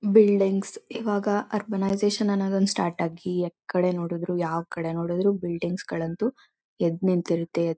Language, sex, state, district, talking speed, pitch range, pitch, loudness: Kannada, female, Karnataka, Mysore, 125 wpm, 170-205 Hz, 180 Hz, -26 LUFS